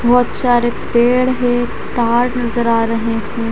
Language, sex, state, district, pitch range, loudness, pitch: Hindi, female, Haryana, Charkhi Dadri, 230-245 Hz, -15 LUFS, 240 Hz